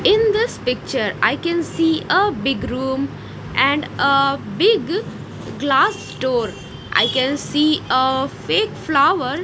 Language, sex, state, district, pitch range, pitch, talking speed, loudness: English, female, Odisha, Nuapada, 265-360 Hz, 285 Hz, 125 wpm, -18 LUFS